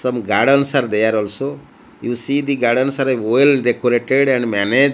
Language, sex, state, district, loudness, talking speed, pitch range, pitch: English, male, Odisha, Malkangiri, -16 LUFS, 180 wpm, 120-140 Hz, 125 Hz